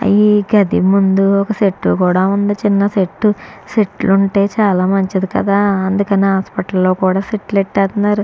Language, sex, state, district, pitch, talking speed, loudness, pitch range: Telugu, female, Andhra Pradesh, Chittoor, 200 Hz, 145 wpm, -14 LUFS, 190-205 Hz